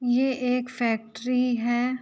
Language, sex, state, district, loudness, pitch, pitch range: Hindi, female, Uttar Pradesh, Ghazipur, -25 LUFS, 250 Hz, 240-250 Hz